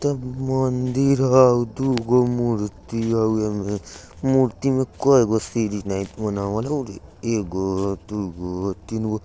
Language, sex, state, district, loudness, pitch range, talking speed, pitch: Bajjika, male, Bihar, Vaishali, -22 LUFS, 100-130 Hz, 110 wpm, 110 Hz